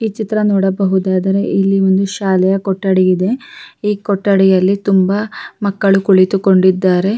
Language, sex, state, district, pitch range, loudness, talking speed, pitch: Kannada, female, Karnataka, Raichur, 190-200 Hz, -14 LUFS, 115 wpm, 195 Hz